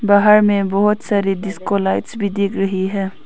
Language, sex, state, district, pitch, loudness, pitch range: Hindi, female, Arunachal Pradesh, Papum Pare, 200 Hz, -17 LUFS, 195-205 Hz